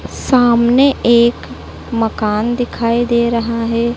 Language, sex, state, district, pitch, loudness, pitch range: Hindi, female, Madhya Pradesh, Dhar, 235 Hz, -14 LUFS, 230-240 Hz